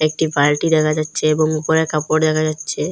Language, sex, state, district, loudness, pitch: Bengali, female, Assam, Hailakandi, -17 LUFS, 155 Hz